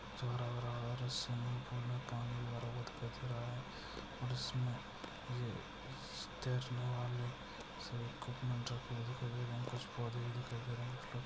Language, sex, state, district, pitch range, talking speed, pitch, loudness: Hindi, male, Uttar Pradesh, Jyotiba Phule Nagar, 120-125 Hz, 95 wpm, 120 Hz, -43 LUFS